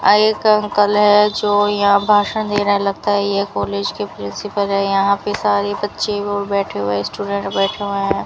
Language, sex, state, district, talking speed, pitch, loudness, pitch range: Hindi, female, Rajasthan, Bikaner, 205 wpm, 205 Hz, -17 LUFS, 200-205 Hz